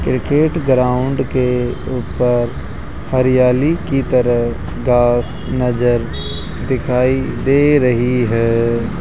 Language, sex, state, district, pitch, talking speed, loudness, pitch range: Hindi, male, Rajasthan, Jaipur, 125 Hz, 85 wpm, -16 LUFS, 120-130 Hz